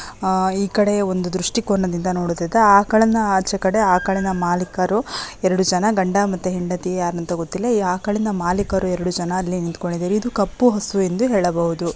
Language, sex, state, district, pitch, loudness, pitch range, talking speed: Kannada, female, Karnataka, Raichur, 190 Hz, -19 LUFS, 180-205 Hz, 165 wpm